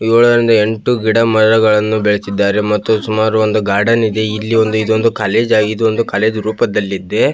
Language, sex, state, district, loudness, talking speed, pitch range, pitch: Kannada, male, Karnataka, Belgaum, -13 LUFS, 140 wpm, 105-115 Hz, 110 Hz